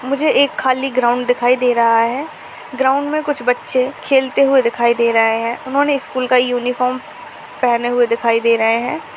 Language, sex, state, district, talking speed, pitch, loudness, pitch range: Hindi, female, Uttar Pradesh, Etah, 185 wpm, 250 Hz, -16 LUFS, 235-270 Hz